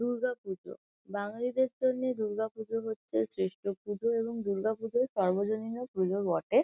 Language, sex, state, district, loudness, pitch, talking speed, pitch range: Bengali, female, West Bengal, Kolkata, -33 LUFS, 220 Hz, 125 wpm, 200-240 Hz